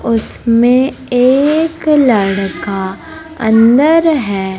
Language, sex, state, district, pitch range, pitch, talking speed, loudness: Hindi, female, Madhya Pradesh, Umaria, 205-305 Hz, 245 Hz, 65 wpm, -12 LUFS